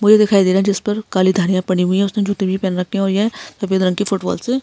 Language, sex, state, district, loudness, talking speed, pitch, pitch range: Hindi, female, Maharashtra, Aurangabad, -17 LUFS, 335 wpm, 195 Hz, 185-205 Hz